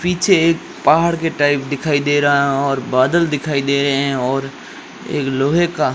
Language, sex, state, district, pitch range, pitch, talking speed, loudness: Hindi, male, Rajasthan, Jaisalmer, 140-165 Hz, 145 Hz, 190 wpm, -16 LUFS